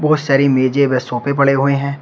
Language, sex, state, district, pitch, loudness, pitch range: Hindi, male, Uttar Pradesh, Shamli, 140 Hz, -15 LUFS, 130-140 Hz